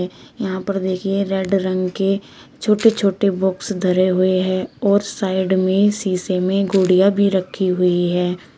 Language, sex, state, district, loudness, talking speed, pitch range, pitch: Hindi, female, Uttar Pradesh, Shamli, -18 LUFS, 155 wpm, 185-200 Hz, 190 Hz